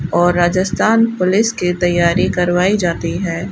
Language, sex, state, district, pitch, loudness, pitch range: Hindi, female, Rajasthan, Bikaner, 180 Hz, -15 LUFS, 175-190 Hz